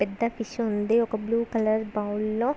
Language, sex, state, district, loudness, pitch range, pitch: Telugu, female, Andhra Pradesh, Visakhapatnam, -26 LUFS, 215-230 Hz, 220 Hz